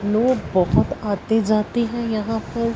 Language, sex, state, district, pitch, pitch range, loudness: Hindi, female, Punjab, Fazilka, 225 Hz, 215-235 Hz, -21 LUFS